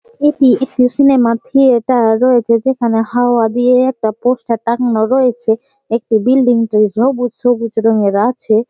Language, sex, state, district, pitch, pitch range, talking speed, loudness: Bengali, female, West Bengal, Malda, 245 Hz, 225-255 Hz, 125 wpm, -13 LUFS